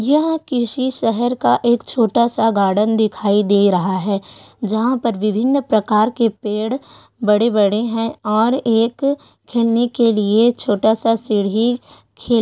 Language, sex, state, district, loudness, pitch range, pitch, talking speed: Hindi, female, Chhattisgarh, Korba, -17 LUFS, 210-240 Hz, 225 Hz, 130 wpm